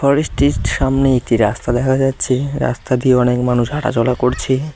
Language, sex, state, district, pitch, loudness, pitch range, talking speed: Bengali, male, West Bengal, Cooch Behar, 125 Hz, -16 LUFS, 120-135 Hz, 165 wpm